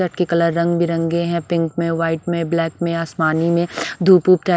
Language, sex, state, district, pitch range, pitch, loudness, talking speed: Hindi, female, Odisha, Sambalpur, 165-170 Hz, 170 Hz, -18 LUFS, 195 wpm